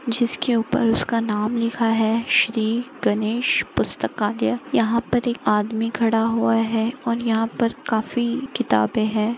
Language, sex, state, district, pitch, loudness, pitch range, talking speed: Hindi, female, Maharashtra, Pune, 230 Hz, -21 LUFS, 220-235 Hz, 140 wpm